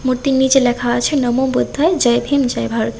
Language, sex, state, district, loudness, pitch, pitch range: Bengali, female, Tripura, West Tripura, -15 LUFS, 260 Hz, 240-270 Hz